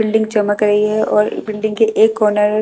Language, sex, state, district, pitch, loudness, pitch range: Hindi, female, Delhi, New Delhi, 215 Hz, -15 LUFS, 210-220 Hz